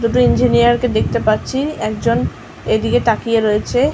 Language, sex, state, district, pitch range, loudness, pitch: Bengali, female, West Bengal, North 24 Parganas, 210-245 Hz, -16 LUFS, 230 Hz